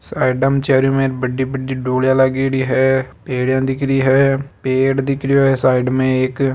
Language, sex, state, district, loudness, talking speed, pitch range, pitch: Marwari, male, Rajasthan, Nagaur, -16 LUFS, 185 wpm, 130-135 Hz, 130 Hz